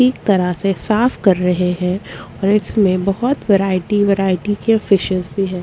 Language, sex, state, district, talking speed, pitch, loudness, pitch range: Hindi, female, Chhattisgarh, Korba, 170 wpm, 195 Hz, -16 LUFS, 185-210 Hz